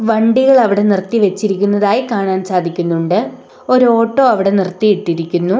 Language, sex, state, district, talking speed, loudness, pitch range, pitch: Malayalam, female, Kerala, Kollam, 105 wpm, -13 LUFS, 185-230 Hz, 205 Hz